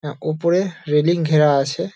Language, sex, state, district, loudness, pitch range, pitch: Bengali, male, West Bengal, Dakshin Dinajpur, -18 LUFS, 150-170 Hz, 155 Hz